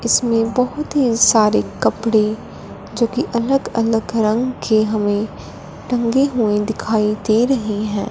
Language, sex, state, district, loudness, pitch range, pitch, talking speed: Hindi, female, Punjab, Fazilka, -17 LUFS, 215-245 Hz, 225 Hz, 135 wpm